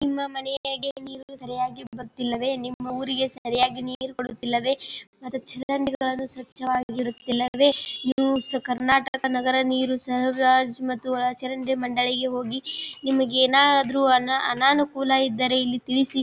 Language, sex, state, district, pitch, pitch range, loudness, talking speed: Kannada, female, Karnataka, Bijapur, 260 Hz, 250-270 Hz, -23 LUFS, 105 wpm